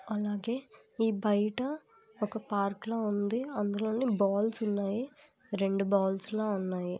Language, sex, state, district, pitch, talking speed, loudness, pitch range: Telugu, female, Andhra Pradesh, Visakhapatnam, 210 Hz, 120 wpm, -32 LUFS, 200-230 Hz